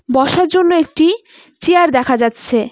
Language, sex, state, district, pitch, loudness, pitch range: Bengali, female, West Bengal, Cooch Behar, 315 Hz, -13 LUFS, 250-350 Hz